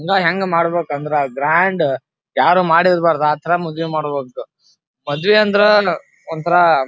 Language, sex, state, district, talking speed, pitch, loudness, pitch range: Kannada, male, Karnataka, Dharwad, 120 wpm, 165 Hz, -16 LUFS, 150-180 Hz